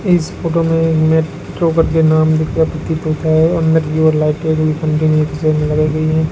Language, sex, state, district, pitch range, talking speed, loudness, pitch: Hindi, male, Rajasthan, Bikaner, 155-160 Hz, 160 wpm, -14 LUFS, 160 Hz